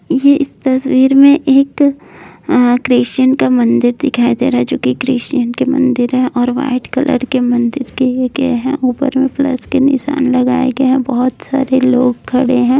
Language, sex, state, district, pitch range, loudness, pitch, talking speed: Hindi, female, Uttar Pradesh, Etah, 250-275 Hz, -13 LUFS, 260 Hz, 165 wpm